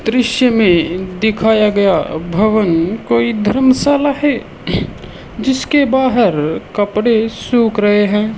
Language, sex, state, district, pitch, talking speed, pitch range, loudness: Hindi, male, Rajasthan, Bikaner, 220 Hz, 100 wpm, 200-250 Hz, -14 LUFS